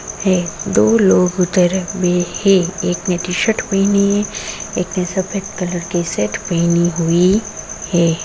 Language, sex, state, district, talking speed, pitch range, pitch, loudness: Hindi, male, Uttar Pradesh, Muzaffarnagar, 140 wpm, 175-195 Hz, 180 Hz, -16 LUFS